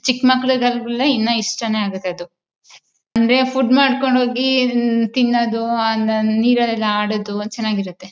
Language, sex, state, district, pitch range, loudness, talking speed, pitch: Kannada, female, Karnataka, Mysore, 215-255 Hz, -17 LUFS, 110 wpm, 235 Hz